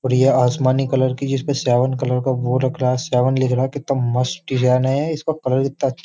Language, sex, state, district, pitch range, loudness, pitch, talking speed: Hindi, male, Uttar Pradesh, Jyotiba Phule Nagar, 125-135 Hz, -19 LUFS, 130 Hz, 260 wpm